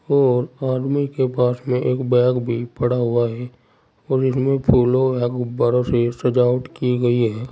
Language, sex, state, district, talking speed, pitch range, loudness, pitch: Hindi, male, Uttar Pradesh, Saharanpur, 165 wpm, 120-130 Hz, -19 LUFS, 125 Hz